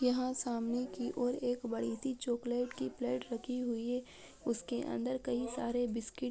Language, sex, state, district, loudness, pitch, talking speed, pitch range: Hindi, female, Bihar, Jahanabad, -37 LUFS, 245 Hz, 170 wpm, 230-250 Hz